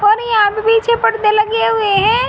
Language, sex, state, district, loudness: Hindi, female, Haryana, Jhajjar, -13 LUFS